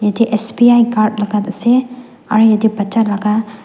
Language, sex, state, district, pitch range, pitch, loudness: Nagamese, female, Nagaland, Dimapur, 210-235 Hz, 220 Hz, -13 LUFS